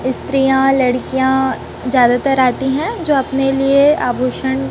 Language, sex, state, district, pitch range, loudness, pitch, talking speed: Hindi, female, Chhattisgarh, Raipur, 255-270 Hz, -15 LUFS, 265 Hz, 125 wpm